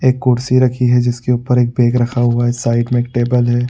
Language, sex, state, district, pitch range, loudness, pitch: Hindi, male, Uttar Pradesh, Budaun, 120-125 Hz, -14 LUFS, 120 Hz